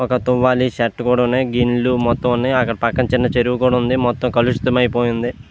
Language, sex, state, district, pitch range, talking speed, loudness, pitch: Telugu, male, Andhra Pradesh, Visakhapatnam, 120-125 Hz, 185 wpm, -17 LUFS, 125 Hz